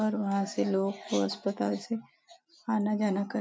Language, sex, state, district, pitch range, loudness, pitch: Hindi, female, Maharashtra, Nagpur, 195-230 Hz, -31 LUFS, 210 Hz